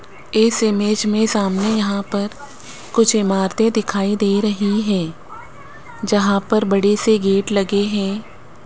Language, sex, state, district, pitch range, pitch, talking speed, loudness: Hindi, female, Rajasthan, Jaipur, 200-220 Hz, 205 Hz, 130 wpm, -18 LUFS